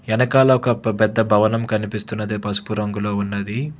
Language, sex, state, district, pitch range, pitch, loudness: Telugu, male, Telangana, Hyderabad, 105-115 Hz, 110 Hz, -19 LUFS